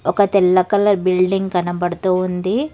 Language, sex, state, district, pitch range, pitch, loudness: Telugu, female, Telangana, Hyderabad, 180-200 Hz, 185 Hz, -17 LUFS